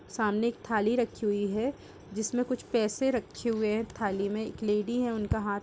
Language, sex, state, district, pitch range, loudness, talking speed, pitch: Hindi, female, Uttar Pradesh, Budaun, 210-240 Hz, -30 LUFS, 215 wpm, 220 Hz